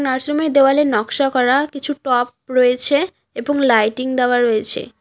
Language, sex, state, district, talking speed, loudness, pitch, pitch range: Bengali, female, West Bengal, Cooch Behar, 130 wpm, -17 LUFS, 260 Hz, 245-280 Hz